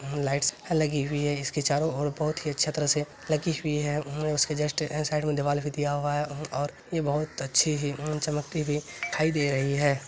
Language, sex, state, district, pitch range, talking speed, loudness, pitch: Maithili, male, Bihar, Araria, 145-155 Hz, 200 wpm, -28 LUFS, 150 Hz